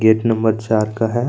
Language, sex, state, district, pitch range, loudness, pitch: Hindi, male, Chhattisgarh, Kabirdham, 110-115 Hz, -17 LUFS, 110 Hz